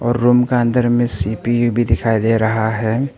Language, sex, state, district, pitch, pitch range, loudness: Hindi, male, Arunachal Pradesh, Papum Pare, 120 Hz, 110-120 Hz, -16 LUFS